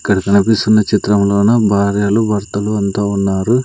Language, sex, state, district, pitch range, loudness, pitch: Telugu, male, Andhra Pradesh, Sri Satya Sai, 100-105 Hz, -14 LUFS, 100 Hz